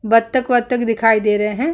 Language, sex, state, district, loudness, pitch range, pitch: Hindi, female, Bihar, Vaishali, -16 LUFS, 220-250 Hz, 230 Hz